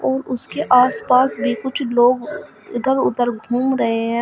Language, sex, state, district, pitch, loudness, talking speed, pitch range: Hindi, female, Uttar Pradesh, Shamli, 250 Hz, -18 LUFS, 155 wpm, 240-265 Hz